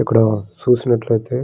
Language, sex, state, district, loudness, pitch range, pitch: Telugu, male, Andhra Pradesh, Srikakulam, -17 LUFS, 110-125 Hz, 115 Hz